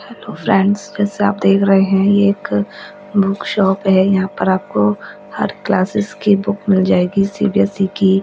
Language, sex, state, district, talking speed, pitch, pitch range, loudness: Hindi, female, Delhi, New Delhi, 170 wpm, 195 Hz, 190-200 Hz, -15 LUFS